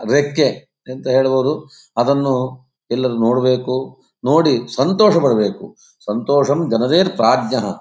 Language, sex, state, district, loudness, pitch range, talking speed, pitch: Kannada, male, Karnataka, Dakshina Kannada, -17 LUFS, 125-140 Hz, 70 wpm, 130 Hz